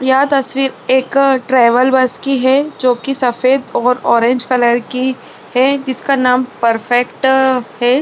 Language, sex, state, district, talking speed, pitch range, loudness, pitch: Hindi, female, Bihar, Saran, 140 wpm, 250-265 Hz, -13 LUFS, 255 Hz